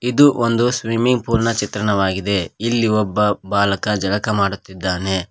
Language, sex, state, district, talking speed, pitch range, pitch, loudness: Kannada, male, Karnataka, Koppal, 125 wpm, 100-115 Hz, 105 Hz, -18 LUFS